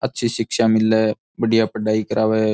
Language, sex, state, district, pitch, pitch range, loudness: Rajasthani, male, Rajasthan, Churu, 110 Hz, 110-115 Hz, -19 LUFS